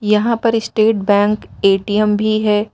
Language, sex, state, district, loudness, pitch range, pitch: Hindi, female, Uttar Pradesh, Lucknow, -15 LUFS, 205-215 Hz, 210 Hz